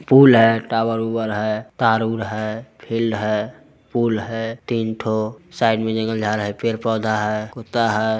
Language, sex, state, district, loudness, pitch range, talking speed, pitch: Hindi, male, Bihar, Muzaffarpur, -20 LUFS, 110-115 Hz, 170 wpm, 115 Hz